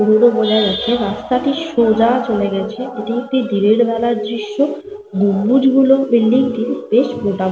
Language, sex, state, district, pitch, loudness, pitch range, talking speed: Bengali, female, Jharkhand, Sahebganj, 235 Hz, -15 LUFS, 215-255 Hz, 145 wpm